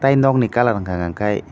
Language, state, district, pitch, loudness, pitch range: Kokborok, Tripura, Dhalai, 115 Hz, -18 LUFS, 100-130 Hz